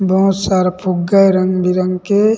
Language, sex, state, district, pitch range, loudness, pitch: Chhattisgarhi, male, Chhattisgarh, Rajnandgaon, 185-195 Hz, -14 LUFS, 185 Hz